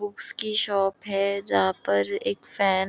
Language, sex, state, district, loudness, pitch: Hindi, female, Maharashtra, Nagpur, -25 LUFS, 195 Hz